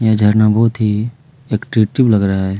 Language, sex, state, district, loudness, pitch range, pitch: Hindi, male, Chhattisgarh, Kabirdham, -14 LUFS, 105-115 Hz, 110 Hz